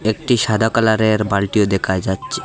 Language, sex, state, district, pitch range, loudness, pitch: Bengali, male, Assam, Hailakandi, 100-110 Hz, -17 LUFS, 110 Hz